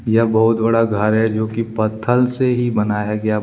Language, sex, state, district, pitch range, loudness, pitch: Hindi, male, Jharkhand, Deoghar, 110-115 Hz, -17 LUFS, 110 Hz